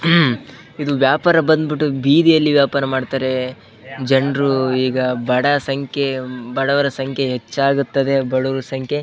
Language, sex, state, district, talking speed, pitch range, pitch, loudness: Kannada, male, Karnataka, Bellary, 95 wpm, 130-145 Hz, 135 Hz, -17 LUFS